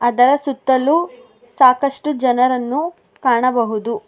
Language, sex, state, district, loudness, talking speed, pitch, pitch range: Kannada, female, Karnataka, Bangalore, -16 LUFS, 75 wpm, 260 Hz, 245-290 Hz